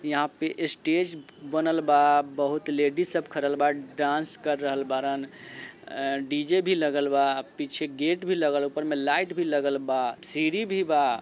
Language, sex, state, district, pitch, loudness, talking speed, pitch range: Bajjika, male, Bihar, Vaishali, 150 Hz, -24 LUFS, 165 wpm, 140-160 Hz